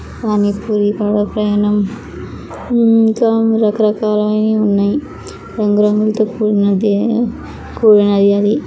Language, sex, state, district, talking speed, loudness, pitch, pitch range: Telugu, female, Andhra Pradesh, Krishna, 70 wpm, -14 LUFS, 210 Hz, 205-220 Hz